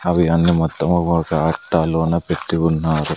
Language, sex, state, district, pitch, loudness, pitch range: Telugu, male, Andhra Pradesh, Sri Satya Sai, 80 Hz, -18 LUFS, 80-85 Hz